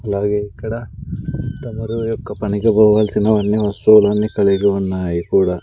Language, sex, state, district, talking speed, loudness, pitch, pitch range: Telugu, male, Andhra Pradesh, Sri Satya Sai, 115 wpm, -17 LUFS, 105 Hz, 100-110 Hz